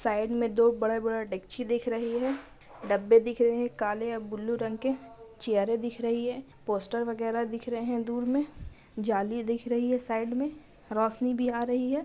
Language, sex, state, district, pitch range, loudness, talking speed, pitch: Hindi, female, Bihar, Muzaffarpur, 225-245 Hz, -29 LUFS, 190 wpm, 235 Hz